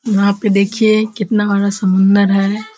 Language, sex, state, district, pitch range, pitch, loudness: Hindi, female, Bihar, Kishanganj, 200-215 Hz, 200 Hz, -14 LUFS